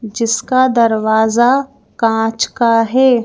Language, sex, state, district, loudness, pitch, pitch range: Hindi, female, Madhya Pradesh, Bhopal, -14 LUFS, 230 Hz, 225-255 Hz